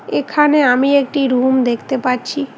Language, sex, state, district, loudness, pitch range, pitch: Bengali, female, West Bengal, Cooch Behar, -15 LUFS, 250-285 Hz, 265 Hz